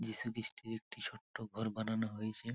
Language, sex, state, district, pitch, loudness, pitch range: Bengali, male, West Bengal, Purulia, 110 Hz, -41 LUFS, 110-115 Hz